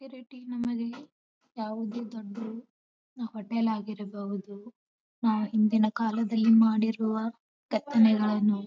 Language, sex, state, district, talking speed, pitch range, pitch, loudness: Kannada, female, Karnataka, Bijapur, 75 wpm, 215-230 Hz, 225 Hz, -28 LUFS